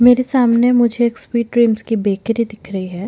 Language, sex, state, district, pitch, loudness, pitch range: Hindi, female, Goa, North and South Goa, 230 Hz, -16 LUFS, 215-240 Hz